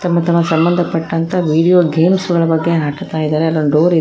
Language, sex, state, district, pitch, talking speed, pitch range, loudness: Kannada, female, Karnataka, Koppal, 165 Hz, 180 wpm, 160-175 Hz, -14 LUFS